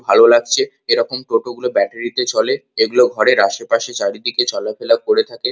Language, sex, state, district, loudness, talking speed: Bengali, male, West Bengal, Kolkata, -16 LUFS, 165 wpm